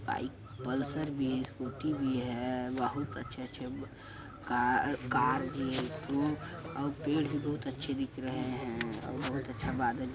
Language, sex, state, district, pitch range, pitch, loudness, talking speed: Hindi, male, Chhattisgarh, Balrampur, 125-140 Hz, 130 Hz, -35 LUFS, 155 wpm